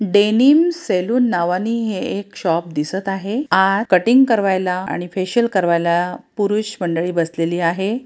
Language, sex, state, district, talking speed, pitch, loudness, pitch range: Marathi, female, Maharashtra, Pune, 120 wpm, 195 Hz, -18 LUFS, 175-225 Hz